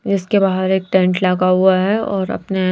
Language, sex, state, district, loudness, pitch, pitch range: Hindi, female, Bihar, Patna, -16 LUFS, 190 Hz, 185-195 Hz